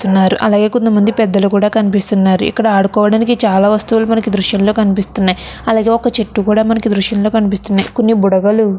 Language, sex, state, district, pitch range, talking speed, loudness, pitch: Telugu, female, Andhra Pradesh, Chittoor, 200-225 Hz, 170 wpm, -12 LUFS, 210 Hz